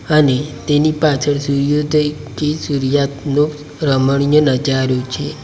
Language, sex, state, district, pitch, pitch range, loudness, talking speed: Gujarati, male, Gujarat, Valsad, 145 Hz, 140-150 Hz, -16 LUFS, 90 wpm